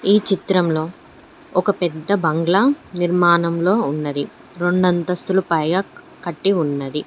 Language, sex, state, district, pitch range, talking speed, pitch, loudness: Telugu, female, Telangana, Mahabubabad, 165-190 Hz, 95 wpm, 175 Hz, -19 LUFS